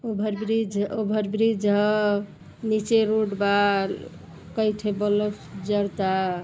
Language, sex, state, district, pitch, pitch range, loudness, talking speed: Bhojpuri, female, Uttar Pradesh, Gorakhpur, 210 Hz, 200-215 Hz, -24 LUFS, 100 wpm